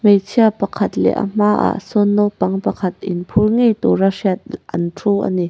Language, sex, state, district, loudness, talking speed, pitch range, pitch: Mizo, female, Mizoram, Aizawl, -17 LUFS, 185 wpm, 195-210 Hz, 205 Hz